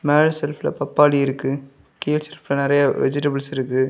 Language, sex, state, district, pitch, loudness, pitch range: Tamil, male, Tamil Nadu, Kanyakumari, 140 Hz, -20 LUFS, 135-150 Hz